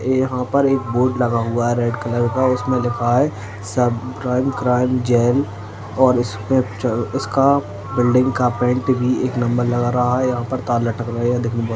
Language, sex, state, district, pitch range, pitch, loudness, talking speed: Hindi, male, Uttar Pradesh, Deoria, 120-130 Hz, 120 Hz, -18 LUFS, 210 wpm